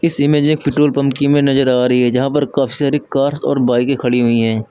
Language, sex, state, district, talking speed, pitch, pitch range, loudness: Hindi, male, Uttar Pradesh, Lucknow, 280 wpm, 140 Hz, 125-145 Hz, -15 LUFS